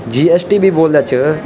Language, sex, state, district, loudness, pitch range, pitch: Garhwali, male, Uttarakhand, Tehri Garhwal, -12 LUFS, 140-170 Hz, 155 Hz